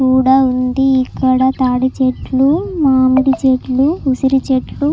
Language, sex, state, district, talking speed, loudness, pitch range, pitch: Telugu, female, Andhra Pradesh, Chittoor, 110 wpm, -13 LUFS, 260-270 Hz, 260 Hz